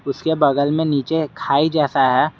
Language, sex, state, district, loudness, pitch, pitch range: Hindi, male, Jharkhand, Garhwa, -18 LUFS, 150 Hz, 140-160 Hz